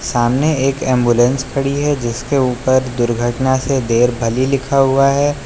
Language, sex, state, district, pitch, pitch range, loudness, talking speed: Hindi, male, Uttar Pradesh, Lucknow, 130 Hz, 120-135 Hz, -15 LUFS, 155 wpm